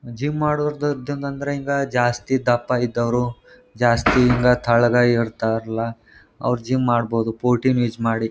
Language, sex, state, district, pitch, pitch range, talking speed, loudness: Kannada, male, Karnataka, Gulbarga, 120 Hz, 115-130 Hz, 125 wpm, -20 LUFS